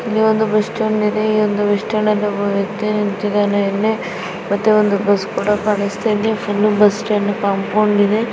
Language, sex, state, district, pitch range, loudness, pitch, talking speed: Kannada, female, Karnataka, Bijapur, 205-215 Hz, -17 LUFS, 210 Hz, 180 wpm